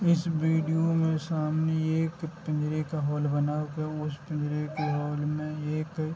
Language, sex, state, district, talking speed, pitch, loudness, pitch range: Hindi, male, Bihar, Darbhanga, 175 wpm, 155 Hz, -29 LUFS, 150-160 Hz